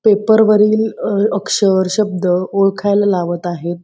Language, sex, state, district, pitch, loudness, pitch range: Marathi, female, Maharashtra, Pune, 195 Hz, -14 LUFS, 180-210 Hz